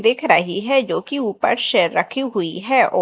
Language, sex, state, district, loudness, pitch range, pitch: Hindi, female, Madhya Pradesh, Dhar, -18 LUFS, 200-275 Hz, 265 Hz